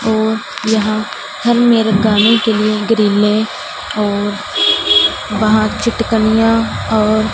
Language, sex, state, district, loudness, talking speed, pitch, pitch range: Hindi, female, Punjab, Fazilka, -13 LUFS, 100 wpm, 215 Hz, 210-225 Hz